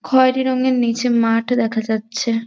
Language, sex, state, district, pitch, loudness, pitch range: Bengali, female, West Bengal, Jhargram, 235 Hz, -18 LUFS, 225-255 Hz